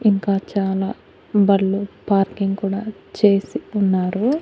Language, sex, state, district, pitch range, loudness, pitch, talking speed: Telugu, female, Andhra Pradesh, Annamaya, 195-205 Hz, -20 LUFS, 200 Hz, 95 wpm